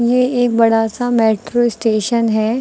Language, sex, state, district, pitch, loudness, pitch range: Hindi, female, Uttar Pradesh, Lucknow, 230 Hz, -15 LUFS, 225-245 Hz